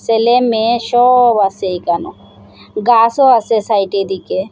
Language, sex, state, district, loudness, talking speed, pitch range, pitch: Bengali, female, Assam, Hailakandi, -13 LUFS, 120 wpm, 190-240 Hz, 220 Hz